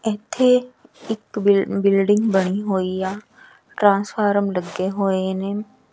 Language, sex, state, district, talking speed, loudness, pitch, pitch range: Punjabi, female, Punjab, Kapurthala, 110 wpm, -20 LUFS, 200 Hz, 190-215 Hz